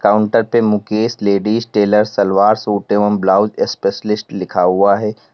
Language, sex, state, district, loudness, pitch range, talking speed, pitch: Hindi, male, Uttar Pradesh, Lalitpur, -15 LUFS, 100-105 Hz, 145 wpm, 105 Hz